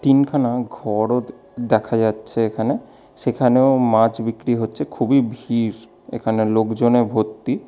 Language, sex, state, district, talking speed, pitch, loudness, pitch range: Bengali, male, West Bengal, Alipurduar, 115 wpm, 115 Hz, -19 LUFS, 110-125 Hz